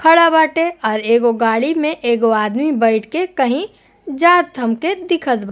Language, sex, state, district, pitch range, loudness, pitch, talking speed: Bhojpuri, female, Uttar Pradesh, Gorakhpur, 230-335 Hz, -15 LUFS, 280 Hz, 175 wpm